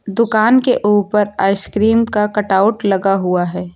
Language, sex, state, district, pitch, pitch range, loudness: Hindi, female, Uttar Pradesh, Lucknow, 205 Hz, 195-220 Hz, -14 LUFS